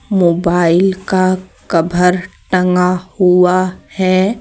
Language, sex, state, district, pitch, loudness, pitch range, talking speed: Hindi, female, Jharkhand, Deoghar, 185 Hz, -14 LUFS, 180-185 Hz, 80 wpm